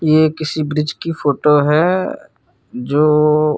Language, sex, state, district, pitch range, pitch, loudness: Hindi, male, Chhattisgarh, Korba, 150-155 Hz, 150 Hz, -15 LUFS